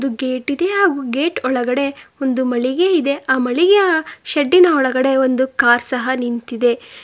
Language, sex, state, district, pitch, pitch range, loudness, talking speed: Kannada, female, Karnataka, Bangalore, 265 Hz, 255-310 Hz, -16 LUFS, 135 wpm